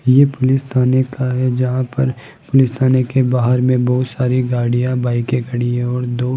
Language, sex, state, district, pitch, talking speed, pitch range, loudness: Hindi, male, Rajasthan, Jaipur, 125 Hz, 205 wpm, 125-130 Hz, -16 LUFS